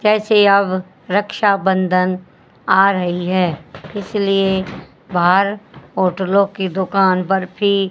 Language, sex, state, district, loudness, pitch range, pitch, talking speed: Hindi, female, Haryana, Jhajjar, -16 LUFS, 185-200 Hz, 190 Hz, 85 wpm